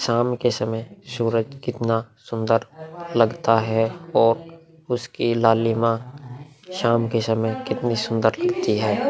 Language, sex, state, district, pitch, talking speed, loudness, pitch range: Hindi, male, Bihar, Vaishali, 115 Hz, 120 wpm, -22 LUFS, 115-135 Hz